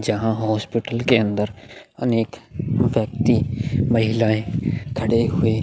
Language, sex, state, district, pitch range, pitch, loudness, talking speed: Hindi, male, Bihar, Vaishali, 110-120 Hz, 115 Hz, -21 LUFS, 105 wpm